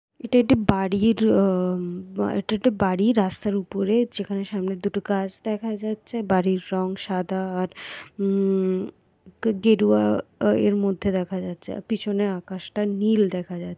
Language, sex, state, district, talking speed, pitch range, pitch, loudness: Bengali, female, West Bengal, Paschim Medinipur, 140 wpm, 185-215 Hz, 195 Hz, -23 LUFS